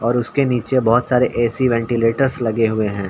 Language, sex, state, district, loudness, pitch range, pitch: Hindi, male, Bihar, Samastipur, -18 LUFS, 115-125 Hz, 120 Hz